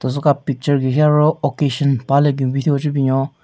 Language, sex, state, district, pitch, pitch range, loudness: Rengma, male, Nagaland, Kohima, 140 Hz, 135-145 Hz, -17 LUFS